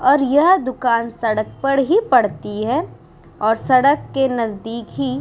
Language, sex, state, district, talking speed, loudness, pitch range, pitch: Hindi, female, Uttar Pradesh, Muzaffarnagar, 160 wpm, -18 LUFS, 230-275 Hz, 255 Hz